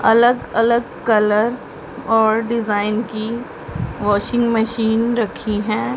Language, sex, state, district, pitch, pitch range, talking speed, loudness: Hindi, female, Punjab, Pathankot, 225 Hz, 215-235 Hz, 100 wpm, -18 LUFS